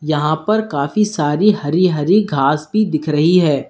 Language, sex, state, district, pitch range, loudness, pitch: Hindi, male, Uttar Pradesh, Lalitpur, 150-205 Hz, -15 LUFS, 155 Hz